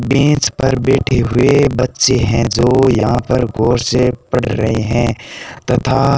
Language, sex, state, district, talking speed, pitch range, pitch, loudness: Hindi, male, Rajasthan, Bikaner, 155 wpm, 120-130 Hz, 125 Hz, -14 LUFS